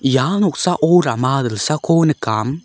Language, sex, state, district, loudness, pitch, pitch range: Garo, male, Meghalaya, South Garo Hills, -16 LUFS, 150 Hz, 130-170 Hz